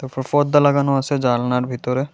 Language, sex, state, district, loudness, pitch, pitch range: Bengali, female, Tripura, West Tripura, -18 LUFS, 130 Hz, 125-140 Hz